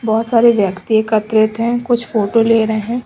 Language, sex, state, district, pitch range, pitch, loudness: Hindi, female, Punjab, Pathankot, 220-230 Hz, 225 Hz, -14 LUFS